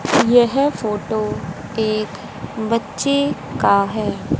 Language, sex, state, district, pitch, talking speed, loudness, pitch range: Hindi, female, Haryana, Rohtak, 220 Hz, 80 wpm, -19 LUFS, 210-245 Hz